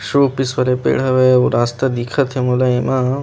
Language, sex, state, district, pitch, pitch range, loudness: Chhattisgarhi, male, Chhattisgarh, Rajnandgaon, 130 Hz, 125-130 Hz, -16 LUFS